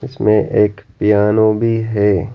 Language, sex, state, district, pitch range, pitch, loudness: Hindi, male, Arunachal Pradesh, Lower Dibang Valley, 105-110 Hz, 105 Hz, -15 LUFS